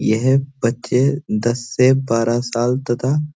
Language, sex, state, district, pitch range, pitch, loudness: Hindi, male, Uttarakhand, Uttarkashi, 120-135 Hz, 125 Hz, -18 LUFS